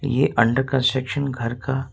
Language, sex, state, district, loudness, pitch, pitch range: Hindi, male, Jharkhand, Ranchi, -21 LUFS, 130 Hz, 125-135 Hz